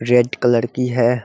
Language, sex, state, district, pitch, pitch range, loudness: Hindi, male, Bihar, Muzaffarpur, 120 Hz, 120-125 Hz, -17 LUFS